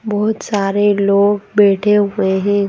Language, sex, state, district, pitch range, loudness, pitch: Hindi, female, Madhya Pradesh, Bhopal, 200-205 Hz, -14 LUFS, 205 Hz